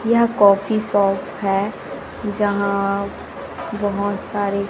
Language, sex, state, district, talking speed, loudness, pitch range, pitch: Hindi, female, Chhattisgarh, Raipur, 90 wpm, -20 LUFS, 200-210 Hz, 200 Hz